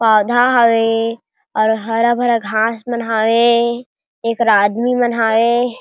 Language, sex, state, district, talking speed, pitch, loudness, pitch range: Chhattisgarhi, female, Chhattisgarh, Jashpur, 115 wpm, 230 Hz, -15 LUFS, 225-240 Hz